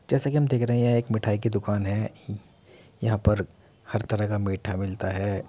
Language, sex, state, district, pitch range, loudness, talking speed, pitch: Hindi, male, Uttar Pradesh, Muzaffarnagar, 100-115 Hz, -26 LUFS, 220 wpm, 105 Hz